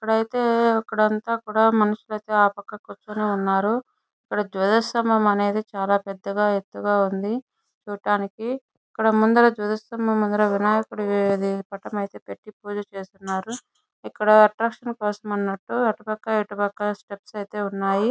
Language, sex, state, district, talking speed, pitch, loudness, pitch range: Telugu, female, Andhra Pradesh, Chittoor, 120 wpm, 210 Hz, -23 LUFS, 200-220 Hz